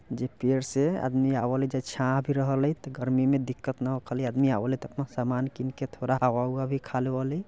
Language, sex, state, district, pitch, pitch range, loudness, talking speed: Bajjika, male, Bihar, Vaishali, 130 Hz, 130-135 Hz, -28 LUFS, 240 wpm